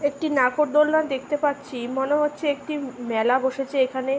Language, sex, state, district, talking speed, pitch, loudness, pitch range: Bengali, female, West Bengal, Purulia, 155 wpm, 275 Hz, -23 LUFS, 260-295 Hz